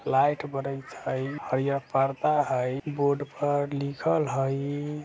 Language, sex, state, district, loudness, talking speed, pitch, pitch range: Bajjika, male, Bihar, Vaishali, -28 LUFS, 130 wpm, 140 Hz, 135-145 Hz